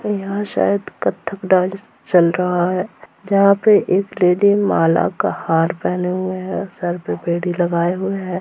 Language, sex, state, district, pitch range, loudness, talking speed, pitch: Hindi, female, Bihar, Purnia, 175-200 Hz, -18 LUFS, 165 wpm, 185 Hz